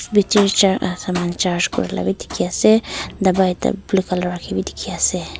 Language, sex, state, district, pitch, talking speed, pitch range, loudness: Nagamese, female, Nagaland, Kohima, 190 Hz, 190 wpm, 180-200 Hz, -18 LUFS